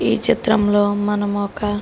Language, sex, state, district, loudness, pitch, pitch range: Telugu, female, Telangana, Karimnagar, -18 LUFS, 205 Hz, 205-210 Hz